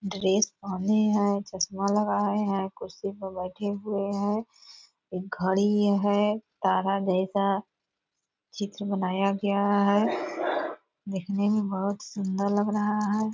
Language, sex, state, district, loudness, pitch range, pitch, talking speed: Hindi, female, Bihar, Purnia, -27 LUFS, 195-205 Hz, 200 Hz, 115 wpm